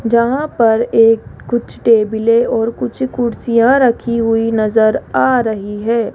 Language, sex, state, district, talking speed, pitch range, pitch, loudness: Hindi, female, Rajasthan, Jaipur, 135 wpm, 225-240 Hz, 230 Hz, -14 LUFS